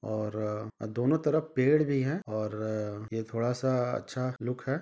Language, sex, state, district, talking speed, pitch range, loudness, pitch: Hindi, male, Jharkhand, Jamtara, 160 wpm, 110-130 Hz, -31 LUFS, 120 Hz